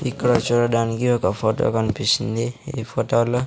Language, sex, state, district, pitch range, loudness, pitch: Telugu, male, Andhra Pradesh, Sri Satya Sai, 115-125 Hz, -21 LUFS, 120 Hz